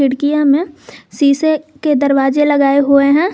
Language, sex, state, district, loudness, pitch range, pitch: Hindi, female, Jharkhand, Garhwa, -13 LUFS, 280-300 Hz, 285 Hz